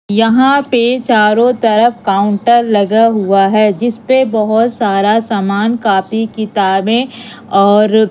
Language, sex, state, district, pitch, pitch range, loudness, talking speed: Hindi, female, Madhya Pradesh, Katni, 220 Hz, 205-235 Hz, -11 LUFS, 120 wpm